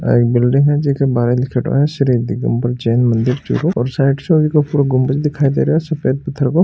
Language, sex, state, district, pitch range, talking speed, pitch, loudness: Marwari, male, Rajasthan, Churu, 125-145 Hz, 235 wpm, 135 Hz, -15 LUFS